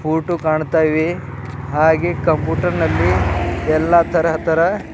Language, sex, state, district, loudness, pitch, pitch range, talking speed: Kannada, male, Karnataka, Bidar, -17 LUFS, 155 Hz, 130-165 Hz, 95 wpm